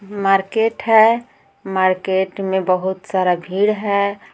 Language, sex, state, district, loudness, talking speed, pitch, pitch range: Hindi, female, Jharkhand, Garhwa, -17 LUFS, 110 wpm, 195 Hz, 190-215 Hz